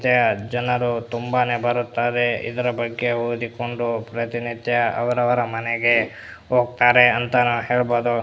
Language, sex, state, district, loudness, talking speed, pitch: Kannada, male, Karnataka, Bellary, -21 LUFS, 95 wpm, 120 Hz